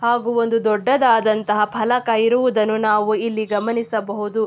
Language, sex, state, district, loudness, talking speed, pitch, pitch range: Kannada, female, Karnataka, Mysore, -18 LUFS, 105 wpm, 220 Hz, 215-235 Hz